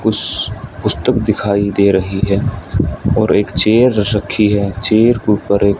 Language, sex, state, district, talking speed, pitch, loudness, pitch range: Hindi, male, Haryana, Rohtak, 135 wpm, 105 Hz, -14 LUFS, 100-110 Hz